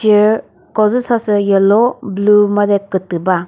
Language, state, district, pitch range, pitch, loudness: Chakhesang, Nagaland, Dimapur, 195-215 Hz, 205 Hz, -13 LUFS